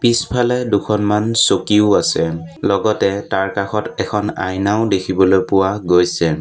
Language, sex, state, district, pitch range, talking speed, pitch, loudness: Assamese, male, Assam, Sonitpur, 95-105 Hz, 110 wpm, 100 Hz, -16 LUFS